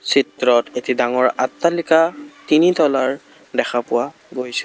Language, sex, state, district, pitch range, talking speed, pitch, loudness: Assamese, male, Assam, Kamrup Metropolitan, 125-165 Hz, 115 wpm, 135 Hz, -18 LUFS